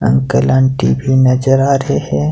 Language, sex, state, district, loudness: Hindi, male, Himachal Pradesh, Shimla, -13 LUFS